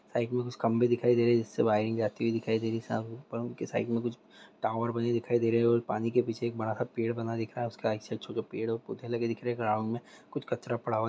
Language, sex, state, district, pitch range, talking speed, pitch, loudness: Hindi, male, Bihar, Muzaffarpur, 115-120 Hz, 310 wpm, 115 Hz, -31 LUFS